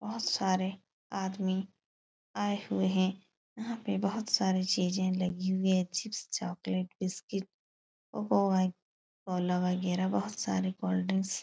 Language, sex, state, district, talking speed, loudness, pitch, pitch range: Hindi, female, Uttar Pradesh, Etah, 115 wpm, -32 LUFS, 190 Hz, 185-195 Hz